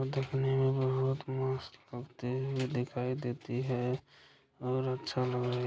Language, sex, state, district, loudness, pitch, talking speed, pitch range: Hindi, male, Bihar, Supaul, -34 LUFS, 130 Hz, 170 wpm, 125-135 Hz